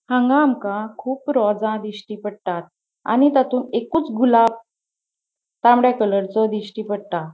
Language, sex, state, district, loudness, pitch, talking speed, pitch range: Konkani, female, Goa, North and South Goa, -19 LUFS, 220 Hz, 115 wpm, 210-250 Hz